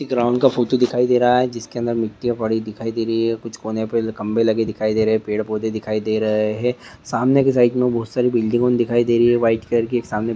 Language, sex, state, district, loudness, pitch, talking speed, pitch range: Hindi, male, Andhra Pradesh, Guntur, -19 LUFS, 115 Hz, 280 wpm, 110-120 Hz